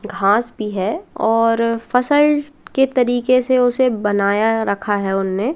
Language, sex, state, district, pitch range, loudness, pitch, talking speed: Hindi, female, Madhya Pradesh, Katni, 205-255 Hz, -17 LUFS, 230 Hz, 150 wpm